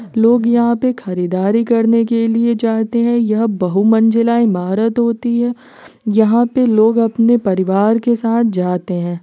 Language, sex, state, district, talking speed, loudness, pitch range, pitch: Hindi, female, Uttar Pradesh, Varanasi, 155 wpm, -14 LUFS, 210-235 Hz, 230 Hz